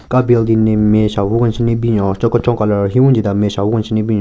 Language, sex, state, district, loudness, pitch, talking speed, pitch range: Rengma, male, Nagaland, Kohima, -14 LUFS, 110 Hz, 270 wpm, 105-115 Hz